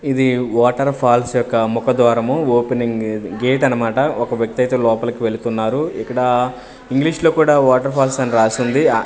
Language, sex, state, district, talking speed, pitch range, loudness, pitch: Telugu, male, Andhra Pradesh, Manyam, 150 wpm, 115-130 Hz, -16 LUFS, 125 Hz